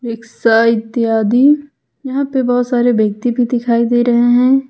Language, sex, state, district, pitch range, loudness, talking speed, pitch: Hindi, female, Jharkhand, Ranchi, 230-255 Hz, -14 LUFS, 155 wpm, 245 Hz